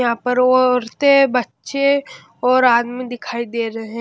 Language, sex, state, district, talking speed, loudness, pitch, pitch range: Hindi, female, Haryana, Jhajjar, 150 wpm, -17 LUFS, 250 Hz, 235-255 Hz